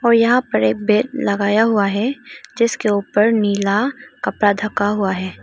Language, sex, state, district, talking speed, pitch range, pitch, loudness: Hindi, female, Arunachal Pradesh, Lower Dibang Valley, 165 wpm, 200-235 Hz, 210 Hz, -17 LUFS